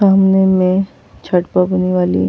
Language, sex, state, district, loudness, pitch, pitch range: Bhojpuri, female, Uttar Pradesh, Ghazipur, -14 LUFS, 185 Hz, 180-190 Hz